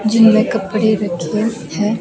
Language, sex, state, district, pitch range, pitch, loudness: Hindi, female, Himachal Pradesh, Shimla, 205-225 Hz, 215 Hz, -15 LUFS